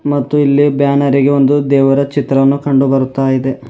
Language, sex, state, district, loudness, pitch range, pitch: Kannada, male, Karnataka, Bidar, -12 LUFS, 135-140 Hz, 140 Hz